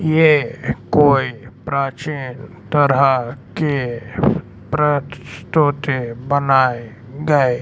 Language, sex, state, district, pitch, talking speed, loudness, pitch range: Hindi, male, Madhya Pradesh, Umaria, 140 Hz, 55 wpm, -18 LUFS, 125-150 Hz